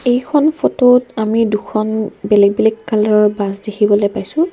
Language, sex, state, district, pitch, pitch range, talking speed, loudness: Assamese, female, Assam, Kamrup Metropolitan, 215 Hz, 210-245 Hz, 160 wpm, -14 LUFS